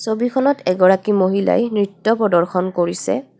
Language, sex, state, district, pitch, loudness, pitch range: Assamese, female, Assam, Kamrup Metropolitan, 200 Hz, -17 LUFS, 185-220 Hz